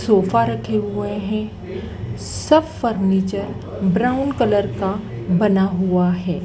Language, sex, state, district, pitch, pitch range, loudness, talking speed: Hindi, female, Madhya Pradesh, Dhar, 195 Hz, 180-215 Hz, -20 LUFS, 110 wpm